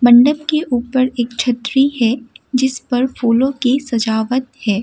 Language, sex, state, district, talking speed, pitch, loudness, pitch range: Hindi, female, Assam, Kamrup Metropolitan, 135 wpm, 250 Hz, -16 LUFS, 235-265 Hz